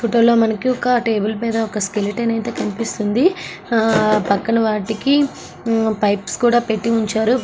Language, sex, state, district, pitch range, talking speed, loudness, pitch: Telugu, female, Andhra Pradesh, Srikakulam, 215-235 Hz, 145 wpm, -18 LUFS, 225 Hz